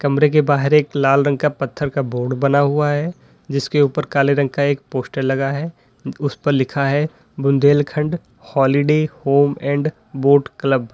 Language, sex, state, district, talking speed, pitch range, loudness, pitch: Hindi, male, Uttar Pradesh, Lalitpur, 180 wpm, 135-150 Hz, -18 LUFS, 140 Hz